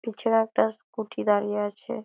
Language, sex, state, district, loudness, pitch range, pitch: Bengali, female, West Bengal, Dakshin Dinajpur, -26 LUFS, 210-225 Hz, 220 Hz